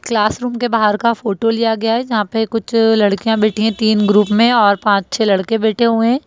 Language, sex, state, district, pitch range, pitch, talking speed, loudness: Hindi, female, Bihar, Jamui, 210-230 Hz, 225 Hz, 240 wpm, -15 LUFS